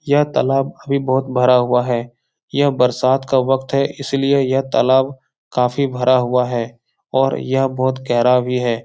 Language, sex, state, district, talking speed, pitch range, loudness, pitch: Hindi, male, Bihar, Jahanabad, 185 wpm, 125-135 Hz, -17 LUFS, 130 Hz